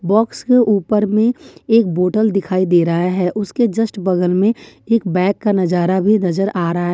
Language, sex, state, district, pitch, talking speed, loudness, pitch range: Hindi, female, Jharkhand, Ranchi, 195 Hz, 200 wpm, -16 LUFS, 180-220 Hz